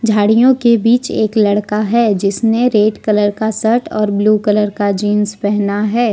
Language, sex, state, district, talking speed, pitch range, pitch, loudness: Hindi, male, Jharkhand, Deoghar, 175 wpm, 205-225 Hz, 215 Hz, -14 LUFS